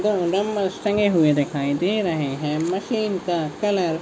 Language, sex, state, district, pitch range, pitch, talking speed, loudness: Hindi, male, Maharashtra, Solapur, 155-205 Hz, 185 Hz, 180 wpm, -22 LUFS